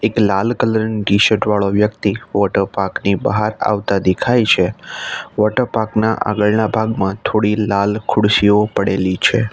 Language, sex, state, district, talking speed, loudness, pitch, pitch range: Gujarati, male, Gujarat, Navsari, 145 wpm, -16 LUFS, 105 Hz, 100-110 Hz